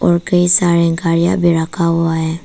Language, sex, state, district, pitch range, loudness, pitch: Hindi, female, Arunachal Pradesh, Papum Pare, 165-175 Hz, -14 LUFS, 170 Hz